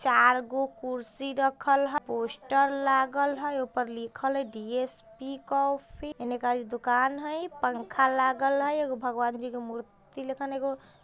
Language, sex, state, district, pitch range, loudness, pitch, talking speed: Bajjika, female, Bihar, Vaishali, 245-275 Hz, -28 LUFS, 265 Hz, 135 wpm